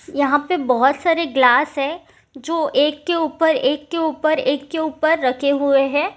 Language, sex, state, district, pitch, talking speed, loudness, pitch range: Hindi, female, Bihar, Supaul, 290 Hz, 185 wpm, -18 LUFS, 275-325 Hz